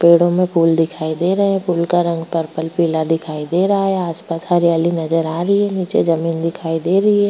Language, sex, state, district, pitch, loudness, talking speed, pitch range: Hindi, female, Bihar, Kishanganj, 170 Hz, -17 LUFS, 230 wpm, 165-180 Hz